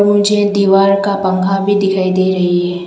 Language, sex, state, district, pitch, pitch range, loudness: Hindi, female, Arunachal Pradesh, Lower Dibang Valley, 195 Hz, 185-200 Hz, -13 LUFS